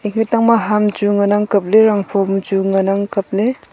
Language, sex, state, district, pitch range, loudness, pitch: Wancho, female, Arunachal Pradesh, Longding, 195-215 Hz, -15 LUFS, 205 Hz